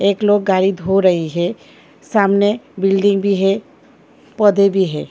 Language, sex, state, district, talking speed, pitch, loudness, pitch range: Hindi, female, Delhi, New Delhi, 155 wpm, 200 Hz, -16 LUFS, 190-205 Hz